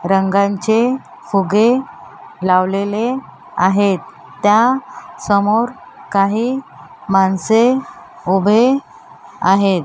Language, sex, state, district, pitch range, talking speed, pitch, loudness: Marathi, female, Maharashtra, Mumbai Suburban, 195-240 Hz, 60 wpm, 205 Hz, -16 LUFS